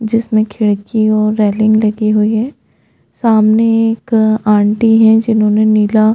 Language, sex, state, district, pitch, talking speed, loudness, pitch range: Hindi, female, Chhattisgarh, Jashpur, 215 Hz, 135 wpm, -12 LUFS, 215-225 Hz